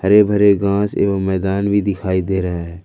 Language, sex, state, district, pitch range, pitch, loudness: Hindi, male, Jharkhand, Ranchi, 95-100 Hz, 100 Hz, -16 LUFS